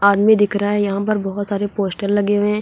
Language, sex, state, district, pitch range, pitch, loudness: Hindi, female, Uttar Pradesh, Lucknow, 200-205 Hz, 205 Hz, -18 LUFS